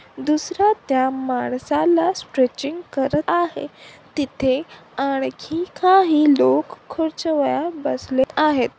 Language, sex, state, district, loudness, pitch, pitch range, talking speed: Marathi, female, Maharashtra, Sindhudurg, -20 LUFS, 295 Hz, 265-335 Hz, 90 wpm